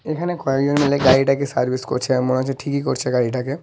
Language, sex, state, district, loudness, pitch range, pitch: Bengali, male, West Bengal, North 24 Parganas, -19 LUFS, 130-140 Hz, 135 Hz